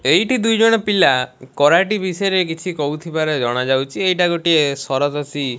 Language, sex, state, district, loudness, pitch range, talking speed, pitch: Odia, male, Odisha, Malkangiri, -17 LUFS, 140-185 Hz, 140 wpm, 160 Hz